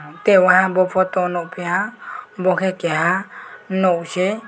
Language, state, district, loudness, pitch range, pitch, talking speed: Kokborok, Tripura, West Tripura, -18 LUFS, 175-190 Hz, 185 Hz, 145 wpm